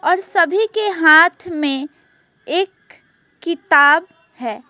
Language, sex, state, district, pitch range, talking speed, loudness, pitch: Hindi, female, West Bengal, Alipurduar, 295-370 Hz, 90 wpm, -15 LUFS, 330 Hz